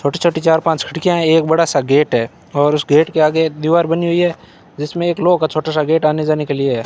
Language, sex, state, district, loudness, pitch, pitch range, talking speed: Hindi, male, Rajasthan, Bikaner, -15 LUFS, 160 Hz, 150-165 Hz, 270 wpm